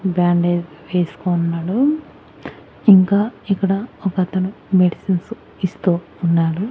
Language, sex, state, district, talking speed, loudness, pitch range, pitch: Telugu, female, Andhra Pradesh, Annamaya, 80 wpm, -18 LUFS, 175-195 Hz, 185 Hz